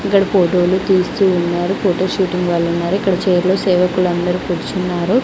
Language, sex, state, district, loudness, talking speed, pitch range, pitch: Telugu, female, Andhra Pradesh, Sri Satya Sai, -16 LUFS, 135 wpm, 175-190 Hz, 185 Hz